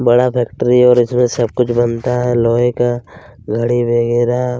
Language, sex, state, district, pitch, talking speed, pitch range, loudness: Hindi, male, Chhattisgarh, Kabirdham, 120 Hz, 170 wpm, 120-125 Hz, -14 LUFS